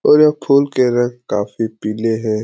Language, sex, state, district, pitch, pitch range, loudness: Hindi, male, Bihar, Supaul, 120 Hz, 110-140 Hz, -16 LUFS